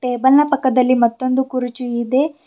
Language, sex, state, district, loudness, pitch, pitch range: Kannada, female, Karnataka, Bidar, -16 LUFS, 255 Hz, 250-265 Hz